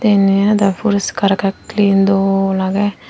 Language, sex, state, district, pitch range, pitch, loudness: Chakma, female, Tripura, Dhalai, 195-205 Hz, 195 Hz, -15 LUFS